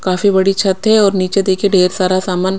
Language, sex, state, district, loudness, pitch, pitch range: Hindi, female, Odisha, Khordha, -13 LUFS, 190 Hz, 185-200 Hz